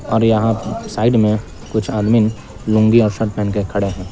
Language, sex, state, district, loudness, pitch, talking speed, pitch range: Hindi, male, Jharkhand, Palamu, -17 LUFS, 110 Hz, 190 wpm, 105-115 Hz